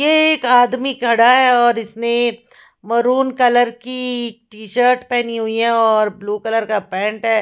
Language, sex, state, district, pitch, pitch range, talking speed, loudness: Hindi, female, Punjab, Fazilka, 235 Hz, 225-250 Hz, 170 wpm, -16 LUFS